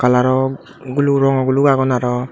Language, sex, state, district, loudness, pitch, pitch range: Chakma, male, Tripura, Dhalai, -16 LUFS, 130 Hz, 125-135 Hz